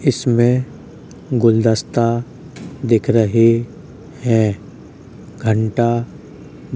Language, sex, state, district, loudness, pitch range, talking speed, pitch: Hindi, male, Uttar Pradesh, Hamirpur, -17 LUFS, 115-125 Hz, 60 wpm, 115 Hz